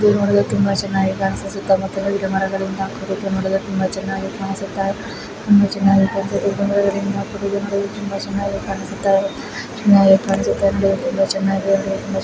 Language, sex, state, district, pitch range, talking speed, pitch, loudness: Kannada, female, Karnataka, Belgaum, 195-200 Hz, 65 wpm, 195 Hz, -19 LUFS